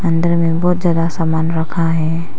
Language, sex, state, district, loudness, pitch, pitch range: Hindi, female, Arunachal Pradesh, Papum Pare, -16 LUFS, 165 Hz, 165-170 Hz